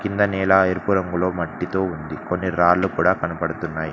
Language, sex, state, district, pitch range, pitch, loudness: Telugu, male, Telangana, Mahabubabad, 85-95 Hz, 90 Hz, -21 LUFS